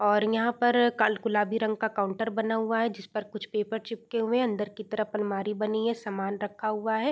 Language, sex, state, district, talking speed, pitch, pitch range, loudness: Hindi, female, Uttar Pradesh, Deoria, 220 wpm, 215 Hz, 210-225 Hz, -28 LUFS